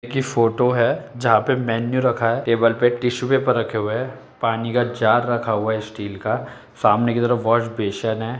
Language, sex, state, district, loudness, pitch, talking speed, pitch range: Hindi, male, Uttar Pradesh, Etah, -20 LUFS, 115 Hz, 215 wpm, 115-125 Hz